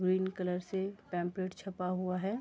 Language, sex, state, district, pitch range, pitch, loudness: Hindi, female, Bihar, Sitamarhi, 180-190 Hz, 185 Hz, -36 LUFS